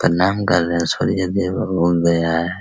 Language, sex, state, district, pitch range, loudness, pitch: Hindi, male, Bihar, Araria, 85-95 Hz, -18 LUFS, 85 Hz